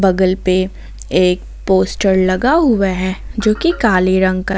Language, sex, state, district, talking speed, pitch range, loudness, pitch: Hindi, female, Jharkhand, Ranchi, 145 wpm, 185-215 Hz, -15 LUFS, 190 Hz